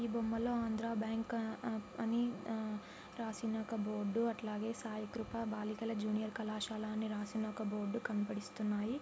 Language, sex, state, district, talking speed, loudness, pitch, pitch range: Telugu, female, Andhra Pradesh, Anantapur, 120 wpm, -40 LUFS, 220 Hz, 215-230 Hz